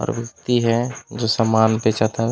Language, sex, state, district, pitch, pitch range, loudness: Chhattisgarhi, male, Chhattisgarh, Raigarh, 115 Hz, 110-120 Hz, -20 LUFS